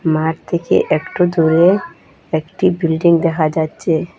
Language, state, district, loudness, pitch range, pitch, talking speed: Bengali, Assam, Hailakandi, -16 LUFS, 160-175 Hz, 165 Hz, 115 wpm